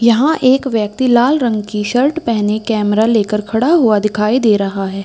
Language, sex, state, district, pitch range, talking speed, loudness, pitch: Hindi, female, Uttar Pradesh, Hamirpur, 210-250 Hz, 190 wpm, -14 LUFS, 220 Hz